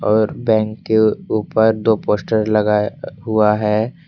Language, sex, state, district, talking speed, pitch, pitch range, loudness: Hindi, male, Jharkhand, Deoghar, 130 wpm, 110 Hz, 105-110 Hz, -17 LUFS